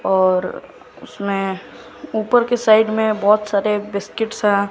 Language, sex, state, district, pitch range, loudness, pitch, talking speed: Hindi, male, Bihar, West Champaran, 200-220 Hz, -18 LUFS, 210 Hz, 125 wpm